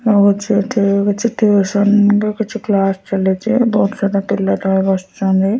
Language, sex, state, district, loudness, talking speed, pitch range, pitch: Odia, female, Odisha, Nuapada, -15 LUFS, 150 wpm, 195-210 Hz, 200 Hz